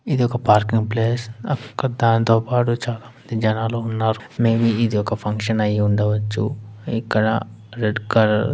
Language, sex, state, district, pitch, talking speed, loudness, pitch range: Telugu, male, Andhra Pradesh, Anantapur, 115 Hz, 120 wpm, -20 LUFS, 110-115 Hz